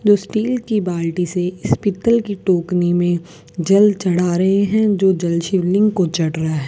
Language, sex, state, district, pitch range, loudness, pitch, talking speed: Hindi, female, Rajasthan, Bikaner, 175-205 Hz, -17 LUFS, 185 Hz, 190 wpm